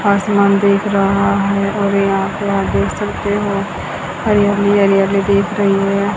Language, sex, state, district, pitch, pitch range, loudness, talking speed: Hindi, female, Haryana, Jhajjar, 200 Hz, 200-205 Hz, -15 LUFS, 165 wpm